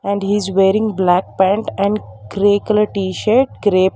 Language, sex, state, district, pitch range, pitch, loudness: English, female, Karnataka, Bangalore, 190-210 Hz, 200 Hz, -16 LUFS